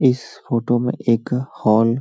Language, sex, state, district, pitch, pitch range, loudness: Hindi, male, Uttar Pradesh, Hamirpur, 120 Hz, 115-125 Hz, -20 LUFS